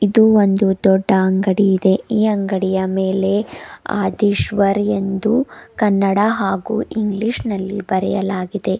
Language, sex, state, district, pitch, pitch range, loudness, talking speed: Kannada, female, Karnataka, Bidar, 200 Hz, 190-210 Hz, -17 LUFS, 100 wpm